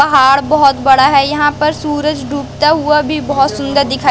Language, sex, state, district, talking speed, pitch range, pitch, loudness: Hindi, female, Madhya Pradesh, Katni, 190 wpm, 275-300 Hz, 285 Hz, -12 LUFS